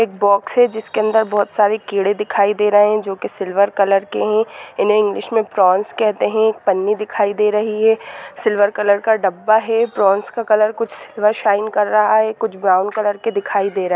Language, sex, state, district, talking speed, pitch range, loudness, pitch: Hindi, female, Bihar, Saran, 225 wpm, 200-220 Hz, -16 LUFS, 210 Hz